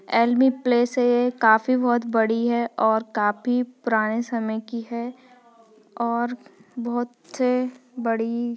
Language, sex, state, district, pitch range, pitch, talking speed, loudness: Hindi, female, Chhattisgarh, Bastar, 225-245 Hz, 235 Hz, 100 wpm, -23 LUFS